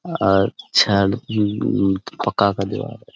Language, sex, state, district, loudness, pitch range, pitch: Hindi, male, Jharkhand, Sahebganj, -19 LUFS, 95-115 Hz, 100 Hz